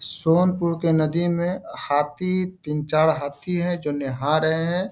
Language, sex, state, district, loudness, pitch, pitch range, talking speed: Hindi, male, Bihar, Bhagalpur, -23 LUFS, 165 Hz, 150-175 Hz, 160 wpm